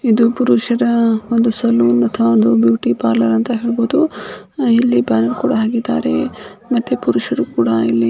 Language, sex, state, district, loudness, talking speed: Kannada, female, Karnataka, Gulbarga, -15 LUFS, 120 wpm